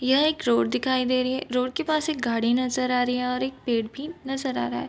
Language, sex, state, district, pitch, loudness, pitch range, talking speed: Hindi, female, Bihar, Bhagalpur, 255 Hz, -25 LUFS, 240-270 Hz, 295 wpm